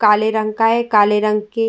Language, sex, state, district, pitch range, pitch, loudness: Hindi, female, Uttar Pradesh, Jyotiba Phule Nagar, 210-225 Hz, 215 Hz, -16 LUFS